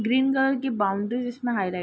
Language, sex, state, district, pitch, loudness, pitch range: Hindi, female, Bihar, Darbhanga, 245 Hz, -25 LUFS, 205-260 Hz